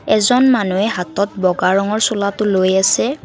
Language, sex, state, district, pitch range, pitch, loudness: Assamese, female, Assam, Kamrup Metropolitan, 190-215 Hz, 200 Hz, -15 LUFS